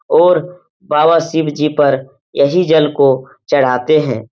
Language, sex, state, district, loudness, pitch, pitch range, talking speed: Hindi, male, Uttar Pradesh, Etah, -13 LUFS, 150 Hz, 135-165 Hz, 125 wpm